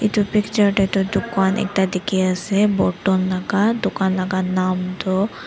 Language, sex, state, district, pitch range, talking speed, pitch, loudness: Nagamese, female, Nagaland, Dimapur, 185-205 Hz, 145 wpm, 195 Hz, -19 LUFS